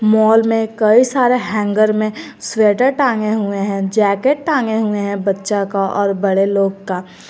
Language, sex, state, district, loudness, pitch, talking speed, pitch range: Hindi, female, Jharkhand, Garhwa, -15 LUFS, 215 Hz, 165 wpm, 200-225 Hz